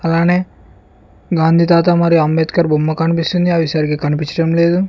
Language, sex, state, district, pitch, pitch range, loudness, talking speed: Telugu, male, Telangana, Mahabubabad, 165 Hz, 150-170 Hz, -14 LUFS, 125 wpm